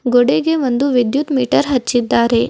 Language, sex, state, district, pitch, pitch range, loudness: Kannada, female, Karnataka, Bidar, 250 Hz, 245-280 Hz, -15 LUFS